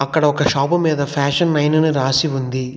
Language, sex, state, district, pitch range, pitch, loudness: Telugu, male, Telangana, Hyderabad, 135-155 Hz, 145 Hz, -17 LUFS